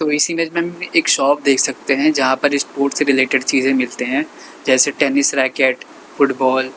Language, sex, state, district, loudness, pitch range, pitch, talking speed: Hindi, male, Uttar Pradesh, Lalitpur, -16 LUFS, 130-155 Hz, 140 Hz, 195 wpm